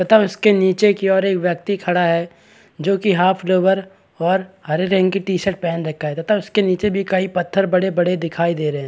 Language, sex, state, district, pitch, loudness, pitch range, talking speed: Hindi, male, Chhattisgarh, Balrampur, 185 Hz, -18 LUFS, 175-195 Hz, 230 wpm